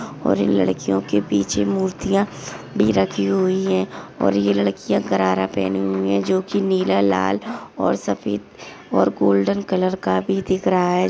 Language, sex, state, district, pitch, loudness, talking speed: Hindi, female, Maharashtra, Aurangabad, 100 Hz, -20 LUFS, 170 wpm